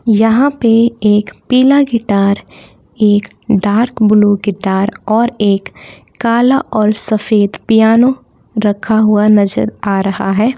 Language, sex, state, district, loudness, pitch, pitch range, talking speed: Hindi, female, Jharkhand, Palamu, -12 LUFS, 215 Hz, 205-230 Hz, 120 wpm